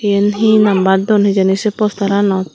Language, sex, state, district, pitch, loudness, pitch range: Chakma, female, Tripura, Dhalai, 200 Hz, -13 LUFS, 190-210 Hz